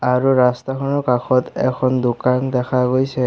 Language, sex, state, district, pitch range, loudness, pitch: Assamese, male, Assam, Sonitpur, 125-130 Hz, -18 LUFS, 130 Hz